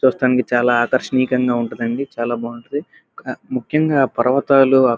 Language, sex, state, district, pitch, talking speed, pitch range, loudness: Telugu, male, Andhra Pradesh, Krishna, 130 Hz, 120 wpm, 120-135 Hz, -18 LUFS